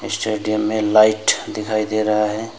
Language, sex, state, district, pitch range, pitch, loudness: Hindi, male, West Bengal, Alipurduar, 105-110 Hz, 110 Hz, -18 LUFS